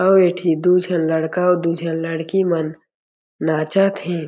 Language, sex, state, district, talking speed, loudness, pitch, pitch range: Chhattisgarhi, male, Chhattisgarh, Jashpur, 180 wpm, -18 LUFS, 170 Hz, 160-180 Hz